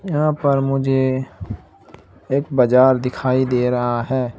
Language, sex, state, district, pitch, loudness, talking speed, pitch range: Hindi, male, Uttar Pradesh, Shamli, 130 Hz, -18 LUFS, 125 wpm, 125-135 Hz